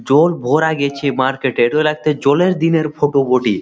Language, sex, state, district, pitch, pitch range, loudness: Bengali, male, West Bengal, Malda, 145 Hz, 135-155 Hz, -15 LUFS